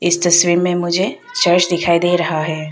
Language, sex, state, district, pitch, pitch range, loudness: Hindi, female, Arunachal Pradesh, Papum Pare, 175 Hz, 170-175 Hz, -15 LUFS